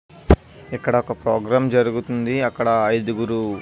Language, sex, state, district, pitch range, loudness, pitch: Telugu, male, Andhra Pradesh, Visakhapatnam, 115-120 Hz, -20 LUFS, 120 Hz